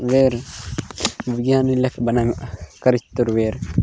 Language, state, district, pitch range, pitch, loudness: Gondi, Chhattisgarh, Sukma, 110-130 Hz, 120 Hz, -20 LUFS